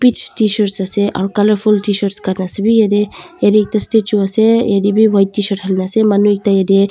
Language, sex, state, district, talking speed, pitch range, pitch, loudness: Nagamese, female, Nagaland, Dimapur, 190 wpm, 195-215 Hz, 205 Hz, -13 LUFS